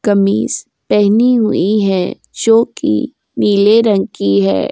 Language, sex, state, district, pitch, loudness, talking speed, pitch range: Hindi, female, Uttar Pradesh, Jyotiba Phule Nagar, 205 Hz, -13 LUFS, 115 wpm, 190-220 Hz